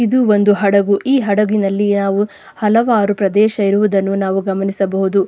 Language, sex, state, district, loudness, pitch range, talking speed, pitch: Kannada, female, Karnataka, Dakshina Kannada, -15 LUFS, 195-210 Hz, 125 wpm, 200 Hz